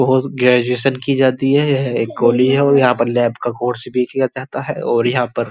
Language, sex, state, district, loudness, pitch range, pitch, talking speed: Hindi, male, Uttar Pradesh, Muzaffarnagar, -16 LUFS, 120-135 Hz, 125 Hz, 250 wpm